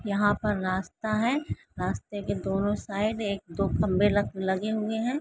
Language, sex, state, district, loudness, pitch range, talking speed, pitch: Hindi, female, Karnataka, Belgaum, -28 LUFS, 195-215 Hz, 140 wpm, 205 Hz